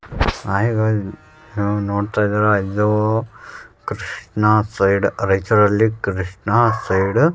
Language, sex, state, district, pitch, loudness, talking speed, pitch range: Kannada, male, Karnataka, Raichur, 105 Hz, -18 LUFS, 80 wpm, 100-110 Hz